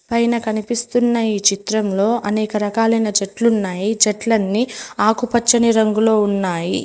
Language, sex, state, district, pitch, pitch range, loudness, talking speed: Telugu, female, Telangana, Mahabubabad, 220 Hz, 205-235 Hz, -17 LUFS, 95 wpm